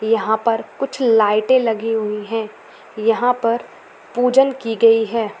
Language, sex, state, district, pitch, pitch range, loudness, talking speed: Hindi, female, Chhattisgarh, Balrampur, 225 Hz, 220-240 Hz, -17 LUFS, 155 wpm